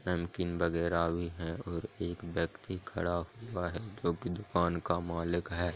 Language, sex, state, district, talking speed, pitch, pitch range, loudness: Hindi, male, Jharkhand, Jamtara, 145 wpm, 85 Hz, 85-90 Hz, -35 LUFS